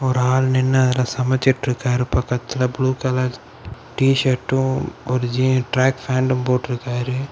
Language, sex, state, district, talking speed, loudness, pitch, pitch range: Tamil, male, Tamil Nadu, Kanyakumari, 125 wpm, -19 LUFS, 130 Hz, 125-130 Hz